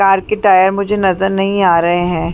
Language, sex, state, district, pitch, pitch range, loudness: Hindi, female, Chhattisgarh, Bilaspur, 195 Hz, 175-195 Hz, -13 LUFS